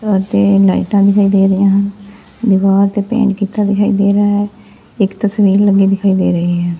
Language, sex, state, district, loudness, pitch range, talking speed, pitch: Punjabi, female, Punjab, Fazilka, -12 LUFS, 195-205 Hz, 195 wpm, 200 Hz